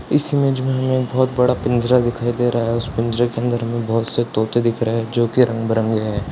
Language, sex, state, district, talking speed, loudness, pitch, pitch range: Hindi, male, Bihar, Purnia, 245 wpm, -19 LUFS, 120 Hz, 115-125 Hz